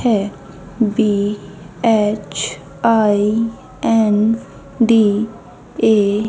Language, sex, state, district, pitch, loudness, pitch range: Hindi, female, Haryana, Jhajjar, 210 Hz, -17 LUFS, 200-225 Hz